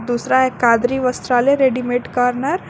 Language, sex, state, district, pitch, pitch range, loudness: Hindi, female, Jharkhand, Garhwa, 250 Hz, 245-265 Hz, -17 LUFS